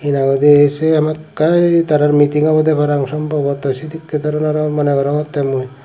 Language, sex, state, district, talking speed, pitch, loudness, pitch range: Chakma, male, Tripura, Dhalai, 145 wpm, 150 Hz, -15 LUFS, 145-155 Hz